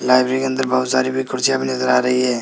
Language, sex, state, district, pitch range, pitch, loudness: Hindi, male, Rajasthan, Jaipur, 125-130 Hz, 130 Hz, -18 LUFS